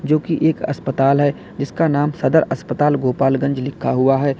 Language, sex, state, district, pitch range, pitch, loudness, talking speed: Hindi, male, Uttar Pradesh, Lalitpur, 135-150 Hz, 140 Hz, -18 LUFS, 165 wpm